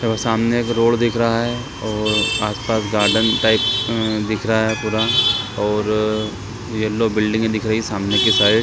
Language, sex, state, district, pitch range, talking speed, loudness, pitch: Hindi, male, Chhattisgarh, Raigarh, 105-115 Hz, 165 wpm, -18 LUFS, 110 Hz